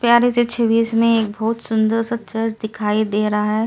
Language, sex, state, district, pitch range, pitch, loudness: Hindi, female, Delhi, New Delhi, 215-230 Hz, 225 Hz, -18 LUFS